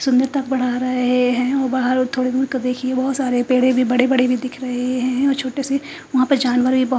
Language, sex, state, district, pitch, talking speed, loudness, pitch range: Hindi, female, Punjab, Fazilka, 255 Hz, 240 wpm, -18 LUFS, 250-265 Hz